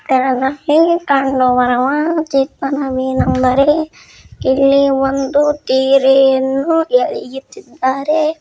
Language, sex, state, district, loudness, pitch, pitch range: Kannada, male, Karnataka, Bijapur, -14 LUFS, 275 Hz, 265-300 Hz